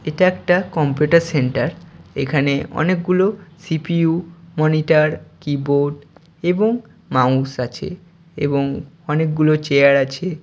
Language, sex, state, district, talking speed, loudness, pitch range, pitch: Bengali, male, West Bengal, Purulia, 110 wpm, -18 LUFS, 140-175 Hz, 155 Hz